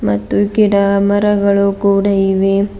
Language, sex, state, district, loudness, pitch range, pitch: Kannada, female, Karnataka, Bidar, -13 LUFS, 195-200 Hz, 200 Hz